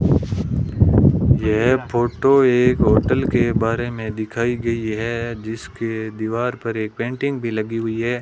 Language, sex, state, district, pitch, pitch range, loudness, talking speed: Hindi, male, Rajasthan, Bikaner, 115 Hz, 110-120 Hz, -19 LUFS, 140 wpm